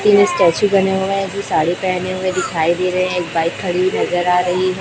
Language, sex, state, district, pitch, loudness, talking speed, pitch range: Hindi, female, Chhattisgarh, Raipur, 185 Hz, -16 LUFS, 260 wpm, 180-190 Hz